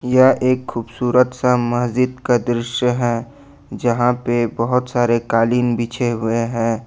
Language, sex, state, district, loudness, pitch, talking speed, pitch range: Hindi, male, Jharkhand, Ranchi, -18 LUFS, 120 Hz, 140 wpm, 115-125 Hz